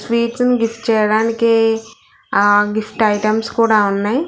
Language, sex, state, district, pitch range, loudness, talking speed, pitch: Telugu, female, Telangana, Hyderabad, 215-230 Hz, -15 LUFS, 125 wpm, 225 Hz